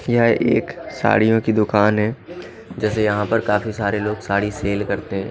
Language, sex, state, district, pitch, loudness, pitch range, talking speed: Hindi, male, Bihar, Katihar, 105 Hz, -19 LUFS, 105-115 Hz, 180 wpm